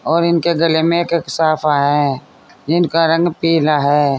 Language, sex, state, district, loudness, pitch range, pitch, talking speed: Hindi, female, Uttar Pradesh, Saharanpur, -15 LUFS, 145-170 Hz, 160 Hz, 170 wpm